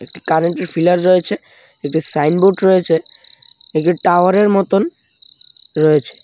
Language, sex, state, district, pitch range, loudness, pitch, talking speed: Bengali, male, Tripura, West Tripura, 160-190 Hz, -15 LUFS, 175 Hz, 105 wpm